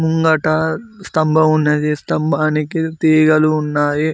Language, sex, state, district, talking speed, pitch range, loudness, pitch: Telugu, male, Telangana, Mahabubabad, 85 wpm, 150-160 Hz, -15 LUFS, 155 Hz